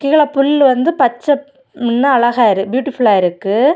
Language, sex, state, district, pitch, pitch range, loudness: Tamil, female, Tamil Nadu, Kanyakumari, 265 Hz, 235-285 Hz, -13 LUFS